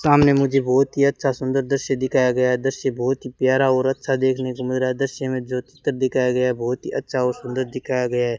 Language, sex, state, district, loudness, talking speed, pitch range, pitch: Hindi, male, Rajasthan, Bikaner, -21 LUFS, 230 wpm, 125-135 Hz, 130 Hz